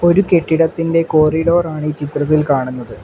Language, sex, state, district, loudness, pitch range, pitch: Malayalam, male, Kerala, Kollam, -15 LUFS, 150-165 Hz, 160 Hz